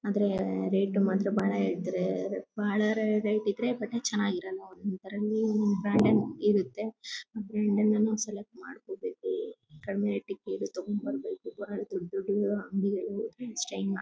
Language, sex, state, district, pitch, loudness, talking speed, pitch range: Kannada, female, Karnataka, Bellary, 205 Hz, -30 LUFS, 115 wpm, 195-215 Hz